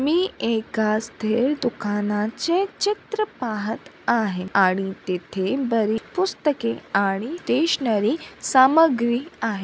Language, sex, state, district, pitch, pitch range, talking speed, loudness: Marathi, female, Maharashtra, Sindhudurg, 230 Hz, 210-295 Hz, 85 wpm, -22 LUFS